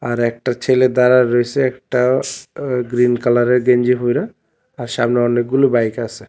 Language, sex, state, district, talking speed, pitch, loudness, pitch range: Bengali, male, Tripura, West Tripura, 150 wpm, 125 Hz, -16 LUFS, 120-125 Hz